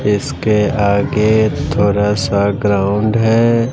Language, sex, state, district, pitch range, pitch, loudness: Hindi, male, Bihar, West Champaran, 100-110 Hz, 105 Hz, -14 LUFS